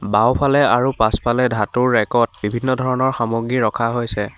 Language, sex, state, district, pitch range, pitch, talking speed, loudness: Assamese, male, Assam, Hailakandi, 110-130 Hz, 120 Hz, 135 wpm, -18 LUFS